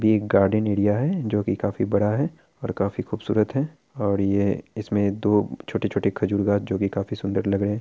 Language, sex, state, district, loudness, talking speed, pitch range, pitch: Hindi, male, Bihar, Araria, -24 LUFS, 200 wpm, 100-110 Hz, 105 Hz